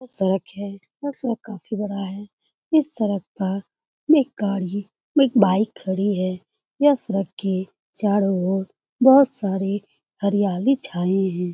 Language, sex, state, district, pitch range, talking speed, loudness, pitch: Hindi, female, Bihar, Saran, 190-235 Hz, 140 wpm, -22 LUFS, 200 Hz